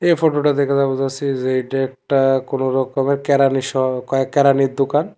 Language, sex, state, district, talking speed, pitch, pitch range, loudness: Bengali, male, Tripura, West Tripura, 175 wpm, 135 Hz, 135-140 Hz, -18 LUFS